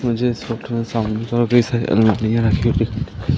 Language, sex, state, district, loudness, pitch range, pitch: Hindi, male, Madhya Pradesh, Katni, -19 LUFS, 110-120 Hz, 115 Hz